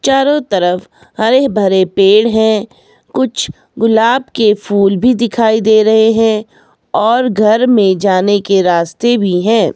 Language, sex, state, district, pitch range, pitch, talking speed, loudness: Hindi, female, Himachal Pradesh, Shimla, 200-235 Hz, 220 Hz, 140 wpm, -12 LUFS